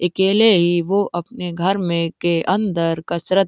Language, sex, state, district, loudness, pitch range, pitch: Hindi, female, Bihar, East Champaran, -18 LUFS, 170-195 Hz, 175 Hz